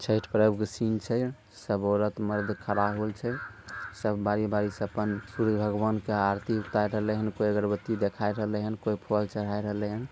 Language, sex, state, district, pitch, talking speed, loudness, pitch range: Maithili, male, Bihar, Sitamarhi, 105 Hz, 170 wpm, -29 LUFS, 105-110 Hz